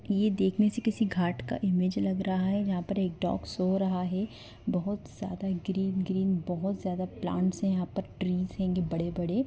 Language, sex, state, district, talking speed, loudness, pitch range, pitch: Hindi, female, West Bengal, Kolkata, 190 wpm, -30 LUFS, 180-195 Hz, 190 Hz